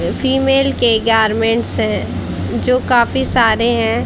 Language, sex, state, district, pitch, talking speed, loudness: Hindi, female, Haryana, Charkhi Dadri, 225 Hz, 120 wpm, -14 LUFS